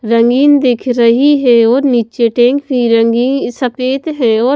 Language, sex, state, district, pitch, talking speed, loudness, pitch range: Hindi, female, Himachal Pradesh, Shimla, 245 Hz, 160 wpm, -11 LUFS, 235-265 Hz